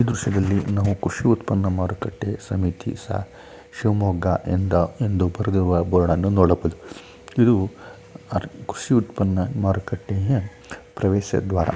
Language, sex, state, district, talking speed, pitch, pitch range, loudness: Kannada, male, Karnataka, Shimoga, 95 wpm, 95 Hz, 90-105 Hz, -22 LUFS